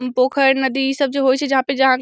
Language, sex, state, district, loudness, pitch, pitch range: Maithili, female, Bihar, Samastipur, -17 LUFS, 265 Hz, 260-275 Hz